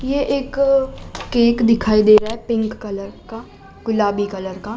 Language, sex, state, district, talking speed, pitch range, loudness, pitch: Hindi, female, Uttar Pradesh, Budaun, 165 wpm, 210-240 Hz, -18 LUFS, 225 Hz